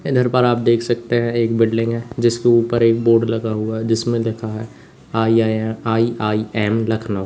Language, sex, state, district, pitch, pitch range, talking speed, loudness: Hindi, male, Uttar Pradesh, Lalitpur, 115 Hz, 110-120 Hz, 180 wpm, -18 LUFS